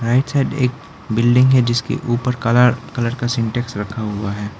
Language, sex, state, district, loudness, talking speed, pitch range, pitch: Hindi, male, Arunachal Pradesh, Lower Dibang Valley, -18 LUFS, 185 wpm, 115-125 Hz, 120 Hz